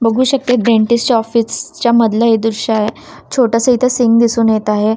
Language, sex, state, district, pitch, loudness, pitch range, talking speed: Marathi, female, Maharashtra, Washim, 230 Hz, -13 LUFS, 225-245 Hz, 180 wpm